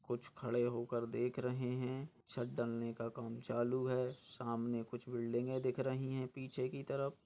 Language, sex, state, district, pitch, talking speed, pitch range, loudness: Hindi, male, Bihar, Jamui, 125 Hz, 175 wpm, 120-130 Hz, -41 LUFS